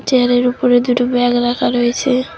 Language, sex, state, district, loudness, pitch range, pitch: Bengali, female, West Bengal, Cooch Behar, -14 LUFS, 245-255 Hz, 245 Hz